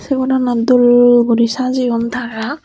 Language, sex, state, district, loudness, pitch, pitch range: Chakma, female, Tripura, Unakoti, -13 LUFS, 245 Hz, 235-255 Hz